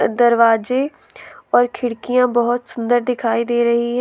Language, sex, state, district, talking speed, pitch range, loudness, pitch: Hindi, female, Jharkhand, Ranchi, 135 wpm, 235-245 Hz, -17 LUFS, 240 Hz